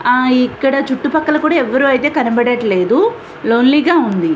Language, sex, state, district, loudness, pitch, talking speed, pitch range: Telugu, female, Andhra Pradesh, Visakhapatnam, -13 LUFS, 270 Hz, 140 wpm, 245-300 Hz